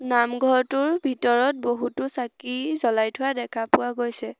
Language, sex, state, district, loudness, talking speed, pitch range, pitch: Assamese, female, Assam, Sonitpur, -23 LUFS, 120 wpm, 240-265 Hz, 245 Hz